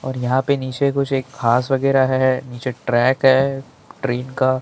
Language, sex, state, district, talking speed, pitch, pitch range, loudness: Hindi, male, Maharashtra, Mumbai Suburban, 195 wpm, 130 Hz, 125-135 Hz, -19 LUFS